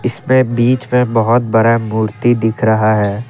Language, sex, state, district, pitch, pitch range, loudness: Hindi, male, Assam, Kamrup Metropolitan, 115 Hz, 110-120 Hz, -13 LUFS